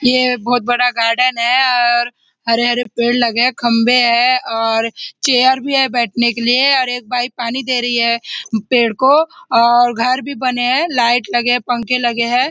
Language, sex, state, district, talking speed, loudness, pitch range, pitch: Hindi, female, Maharashtra, Nagpur, 195 wpm, -14 LUFS, 235-255 Hz, 245 Hz